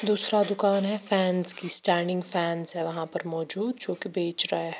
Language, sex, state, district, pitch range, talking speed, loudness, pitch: Hindi, female, Bihar, Patna, 170-205 Hz, 200 wpm, -19 LUFS, 180 Hz